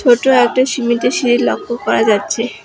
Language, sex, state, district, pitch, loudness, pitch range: Bengali, female, West Bengal, Alipurduar, 240 Hz, -14 LUFS, 235-250 Hz